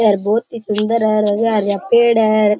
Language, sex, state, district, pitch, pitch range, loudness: Rajasthani, male, Rajasthan, Churu, 215 Hz, 210-225 Hz, -15 LUFS